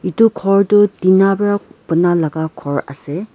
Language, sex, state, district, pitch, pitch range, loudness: Nagamese, female, Nagaland, Dimapur, 185 Hz, 160-205 Hz, -15 LUFS